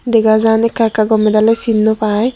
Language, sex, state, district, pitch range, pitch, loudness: Chakma, female, Tripura, Dhalai, 215-230 Hz, 220 Hz, -12 LUFS